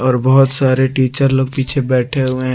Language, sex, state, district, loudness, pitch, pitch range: Hindi, male, Jharkhand, Garhwa, -14 LUFS, 130 Hz, 130-135 Hz